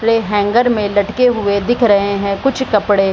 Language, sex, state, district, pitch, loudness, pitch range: Hindi, female, Bihar, Supaul, 210 Hz, -14 LUFS, 200-240 Hz